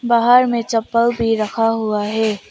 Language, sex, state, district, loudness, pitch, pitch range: Hindi, female, Arunachal Pradesh, Papum Pare, -17 LUFS, 225 Hz, 220-235 Hz